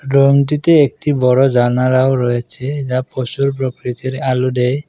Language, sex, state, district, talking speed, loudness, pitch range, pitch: Bengali, male, Assam, Kamrup Metropolitan, 135 wpm, -15 LUFS, 125-140 Hz, 130 Hz